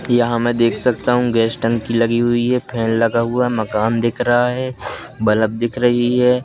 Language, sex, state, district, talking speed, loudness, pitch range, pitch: Hindi, male, Madhya Pradesh, Katni, 205 wpm, -17 LUFS, 115-125 Hz, 120 Hz